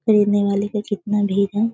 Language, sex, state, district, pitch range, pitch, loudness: Hindi, female, Bihar, Sitamarhi, 200-210 Hz, 205 Hz, -20 LUFS